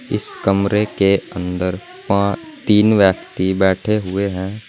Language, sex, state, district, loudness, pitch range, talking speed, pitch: Hindi, male, Uttar Pradesh, Saharanpur, -17 LUFS, 95-105 Hz, 115 wpm, 100 Hz